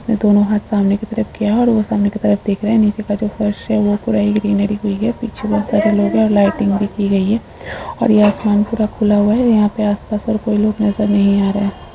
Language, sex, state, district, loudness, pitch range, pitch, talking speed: Hindi, female, Jharkhand, Sahebganj, -15 LUFS, 205-215 Hz, 210 Hz, 290 wpm